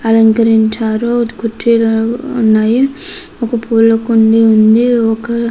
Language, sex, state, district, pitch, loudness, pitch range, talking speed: Telugu, female, Andhra Pradesh, Krishna, 230 Hz, -11 LUFS, 225-235 Hz, 85 wpm